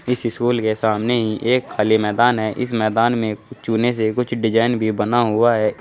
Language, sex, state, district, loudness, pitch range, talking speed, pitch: Hindi, male, Uttar Pradesh, Saharanpur, -18 LUFS, 110-120 Hz, 205 wpm, 115 Hz